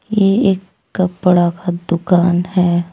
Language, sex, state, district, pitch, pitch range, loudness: Hindi, female, Jharkhand, Deoghar, 180 Hz, 175-185 Hz, -15 LUFS